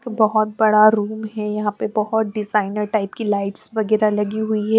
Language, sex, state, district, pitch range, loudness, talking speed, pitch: Hindi, female, Bihar, West Champaran, 210-220 Hz, -19 LUFS, 190 wpm, 215 Hz